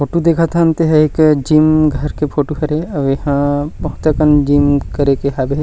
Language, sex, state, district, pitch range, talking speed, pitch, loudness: Chhattisgarhi, male, Chhattisgarh, Rajnandgaon, 145-155 Hz, 200 wpm, 150 Hz, -14 LUFS